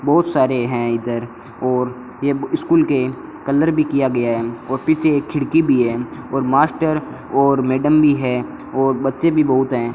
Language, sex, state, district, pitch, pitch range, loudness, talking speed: Hindi, male, Rajasthan, Bikaner, 135 Hz, 125-150 Hz, -18 LUFS, 180 wpm